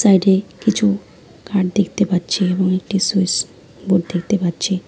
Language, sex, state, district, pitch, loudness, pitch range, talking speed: Bengali, female, West Bengal, Alipurduar, 190 Hz, -18 LUFS, 185-200 Hz, 135 wpm